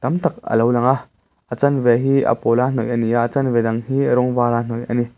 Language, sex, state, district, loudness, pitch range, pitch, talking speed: Mizo, male, Mizoram, Aizawl, -18 LUFS, 115-125 Hz, 120 Hz, 290 wpm